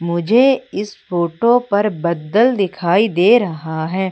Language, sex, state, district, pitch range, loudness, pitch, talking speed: Hindi, female, Madhya Pradesh, Umaria, 170-225 Hz, -16 LUFS, 195 Hz, 130 wpm